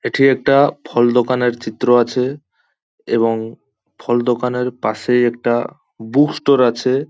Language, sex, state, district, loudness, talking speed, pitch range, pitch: Bengali, male, West Bengal, Paschim Medinipur, -16 LUFS, 120 wpm, 120-130 Hz, 125 Hz